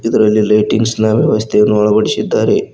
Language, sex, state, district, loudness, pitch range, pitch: Kannada, male, Karnataka, Koppal, -12 LUFS, 105-110 Hz, 110 Hz